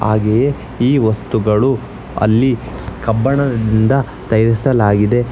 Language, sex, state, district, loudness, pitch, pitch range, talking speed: Kannada, male, Karnataka, Bangalore, -15 LUFS, 115 Hz, 110-130 Hz, 65 wpm